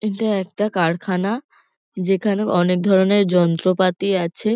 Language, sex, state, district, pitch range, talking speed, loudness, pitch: Bengali, female, West Bengal, Kolkata, 180-205 Hz, 105 wpm, -19 LUFS, 190 Hz